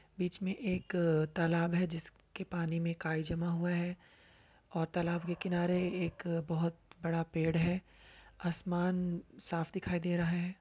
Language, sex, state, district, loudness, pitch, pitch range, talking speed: Hindi, female, Uttar Pradesh, Varanasi, -35 LUFS, 170 Hz, 165-180 Hz, 160 wpm